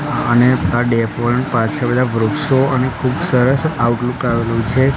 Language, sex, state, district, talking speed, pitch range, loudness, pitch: Gujarati, male, Gujarat, Gandhinagar, 155 wpm, 115-130 Hz, -15 LUFS, 125 Hz